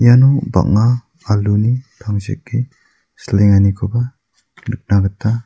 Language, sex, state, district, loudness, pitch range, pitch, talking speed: Garo, male, Meghalaya, South Garo Hills, -16 LUFS, 105-125 Hz, 115 Hz, 75 wpm